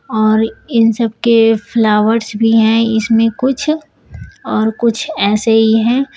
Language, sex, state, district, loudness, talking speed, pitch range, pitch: Hindi, female, Uttar Pradesh, Shamli, -13 LUFS, 135 wpm, 220-235 Hz, 225 Hz